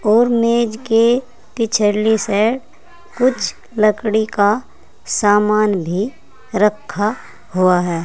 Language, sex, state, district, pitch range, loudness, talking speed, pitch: Hindi, female, Uttar Pradesh, Saharanpur, 205-235 Hz, -17 LUFS, 95 wpm, 215 Hz